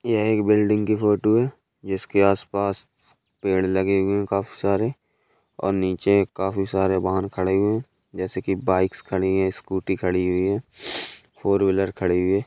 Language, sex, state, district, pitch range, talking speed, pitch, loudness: Hindi, male, Uttar Pradesh, Jalaun, 95-105 Hz, 180 wpm, 95 Hz, -23 LUFS